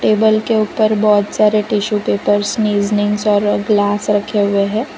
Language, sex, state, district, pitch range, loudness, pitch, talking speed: Hindi, female, Gujarat, Valsad, 205-215 Hz, -15 LUFS, 210 Hz, 145 wpm